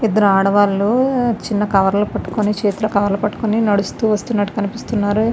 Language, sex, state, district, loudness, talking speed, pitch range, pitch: Telugu, female, Andhra Pradesh, Visakhapatnam, -17 LUFS, 145 wpm, 200-220 Hz, 210 Hz